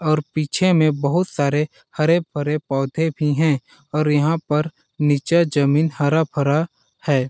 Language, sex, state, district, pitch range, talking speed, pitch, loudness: Hindi, male, Chhattisgarh, Balrampur, 145-160 Hz, 130 wpm, 150 Hz, -20 LUFS